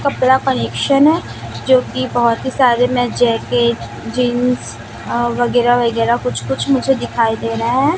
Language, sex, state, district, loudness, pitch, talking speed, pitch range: Hindi, female, Chhattisgarh, Raipur, -15 LUFS, 245 Hz, 160 wpm, 230-260 Hz